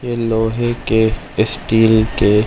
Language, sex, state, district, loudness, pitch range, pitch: Hindi, male, Chhattisgarh, Bilaspur, -15 LUFS, 110-120 Hz, 110 Hz